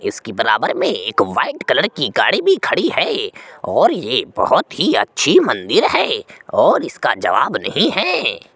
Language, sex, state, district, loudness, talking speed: Hindi, male, Uttar Pradesh, Jyotiba Phule Nagar, -16 LUFS, 170 wpm